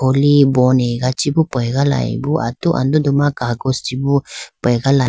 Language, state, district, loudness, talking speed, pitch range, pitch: Idu Mishmi, Arunachal Pradesh, Lower Dibang Valley, -16 LUFS, 130 wpm, 125-140 Hz, 135 Hz